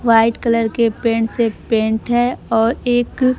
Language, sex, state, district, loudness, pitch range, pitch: Hindi, female, Bihar, Kaimur, -17 LUFS, 225-245 Hz, 230 Hz